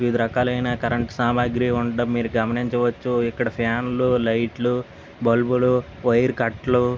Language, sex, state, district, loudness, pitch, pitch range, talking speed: Telugu, male, Andhra Pradesh, Visakhapatnam, -22 LUFS, 120 Hz, 115-125 Hz, 130 wpm